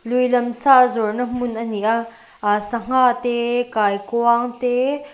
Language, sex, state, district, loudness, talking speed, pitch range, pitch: Mizo, female, Mizoram, Aizawl, -19 LUFS, 165 wpm, 230-250 Hz, 240 Hz